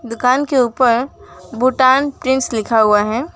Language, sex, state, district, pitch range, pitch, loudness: Hindi, female, West Bengal, Alipurduar, 230-265 Hz, 250 Hz, -15 LUFS